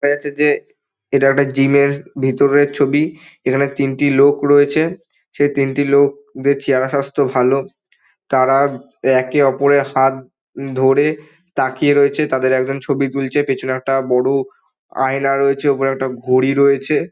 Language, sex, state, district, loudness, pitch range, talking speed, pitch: Bengali, male, West Bengal, Dakshin Dinajpur, -16 LUFS, 135-145 Hz, 135 wpm, 140 Hz